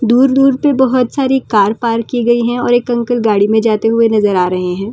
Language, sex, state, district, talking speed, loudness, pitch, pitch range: Hindi, female, Delhi, New Delhi, 255 wpm, -12 LUFS, 235 Hz, 215-250 Hz